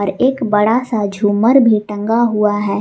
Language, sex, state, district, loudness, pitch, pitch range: Hindi, female, Jharkhand, Palamu, -14 LUFS, 210 Hz, 205-235 Hz